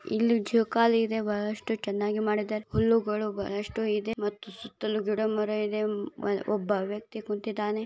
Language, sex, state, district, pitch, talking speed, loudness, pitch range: Kannada, female, Karnataka, Bijapur, 215 Hz, 120 wpm, -29 LUFS, 210-220 Hz